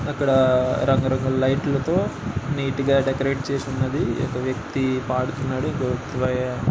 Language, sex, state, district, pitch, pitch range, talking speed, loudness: Telugu, male, Andhra Pradesh, Anantapur, 130 Hz, 130-135 Hz, 135 wpm, -22 LUFS